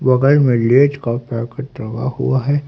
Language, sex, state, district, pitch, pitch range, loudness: Hindi, male, Haryana, Rohtak, 130 Hz, 120-140 Hz, -16 LUFS